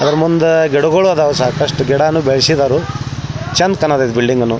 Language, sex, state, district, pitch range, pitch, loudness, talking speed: Kannada, male, Karnataka, Belgaum, 130-160 Hz, 145 Hz, -13 LUFS, 155 wpm